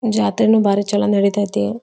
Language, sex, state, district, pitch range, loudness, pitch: Kannada, female, Karnataka, Belgaum, 200-215 Hz, -16 LUFS, 205 Hz